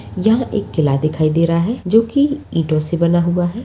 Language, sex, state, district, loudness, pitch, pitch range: Hindi, female, Bihar, Bhagalpur, -16 LUFS, 170 Hz, 165-225 Hz